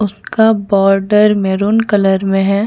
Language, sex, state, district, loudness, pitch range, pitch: Hindi, female, Chhattisgarh, Bastar, -12 LUFS, 195-210 Hz, 205 Hz